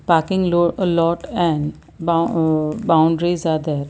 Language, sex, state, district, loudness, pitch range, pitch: English, female, Gujarat, Valsad, -18 LUFS, 160-175 Hz, 165 Hz